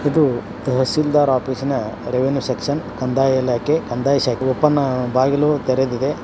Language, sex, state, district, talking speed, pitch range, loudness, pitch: Kannada, male, Karnataka, Belgaum, 115 wpm, 130-145 Hz, -19 LUFS, 130 Hz